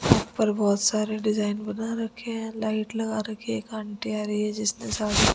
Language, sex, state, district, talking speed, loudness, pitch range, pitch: Hindi, female, Delhi, New Delhi, 215 wpm, -27 LUFS, 210-220 Hz, 215 Hz